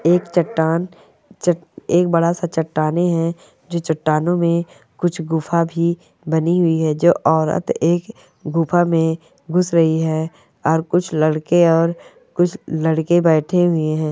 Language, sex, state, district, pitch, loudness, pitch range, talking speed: Hindi, female, Uttar Pradesh, Hamirpur, 165 Hz, -18 LUFS, 160-175 Hz, 140 wpm